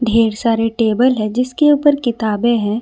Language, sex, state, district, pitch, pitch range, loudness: Hindi, female, Jharkhand, Ranchi, 230 Hz, 220-250 Hz, -15 LUFS